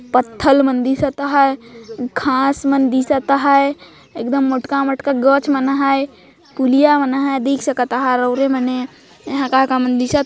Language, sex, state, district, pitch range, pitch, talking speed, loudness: Hindi, female, Chhattisgarh, Jashpur, 255-275 Hz, 270 Hz, 175 wpm, -16 LUFS